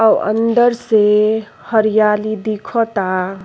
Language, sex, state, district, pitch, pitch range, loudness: Bhojpuri, female, Uttar Pradesh, Ghazipur, 215 Hz, 210-225 Hz, -15 LUFS